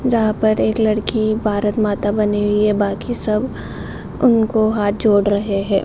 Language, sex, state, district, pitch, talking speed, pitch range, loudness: Hindi, female, Bihar, Saran, 215 Hz, 185 wpm, 205-220 Hz, -17 LUFS